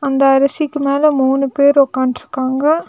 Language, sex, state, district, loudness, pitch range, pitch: Tamil, female, Tamil Nadu, Nilgiris, -14 LUFS, 270-295 Hz, 275 Hz